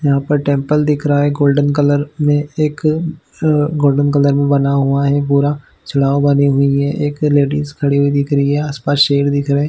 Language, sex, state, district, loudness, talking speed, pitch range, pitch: Hindi, male, Chhattisgarh, Bilaspur, -14 LUFS, 210 wpm, 140-145 Hz, 145 Hz